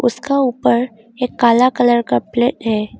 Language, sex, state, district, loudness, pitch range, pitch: Hindi, female, Arunachal Pradesh, Longding, -16 LUFS, 235-250 Hz, 240 Hz